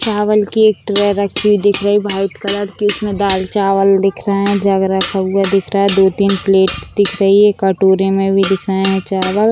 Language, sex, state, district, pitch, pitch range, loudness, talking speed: Hindi, female, Bihar, Sitamarhi, 195 Hz, 195-205 Hz, -14 LUFS, 225 wpm